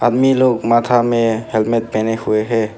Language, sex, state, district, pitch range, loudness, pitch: Hindi, male, Arunachal Pradesh, Papum Pare, 110-120 Hz, -16 LUFS, 115 Hz